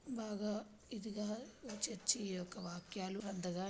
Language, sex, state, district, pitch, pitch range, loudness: Telugu, female, Andhra Pradesh, Srikakulam, 210 Hz, 190-220 Hz, -43 LUFS